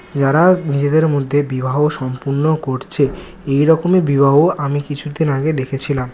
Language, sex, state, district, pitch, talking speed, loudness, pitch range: Bengali, male, West Bengal, Kolkata, 145 Hz, 125 wpm, -16 LUFS, 140-155 Hz